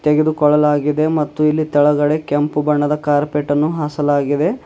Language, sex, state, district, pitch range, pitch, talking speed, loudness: Kannada, male, Karnataka, Bidar, 145-150 Hz, 150 Hz, 115 wpm, -16 LUFS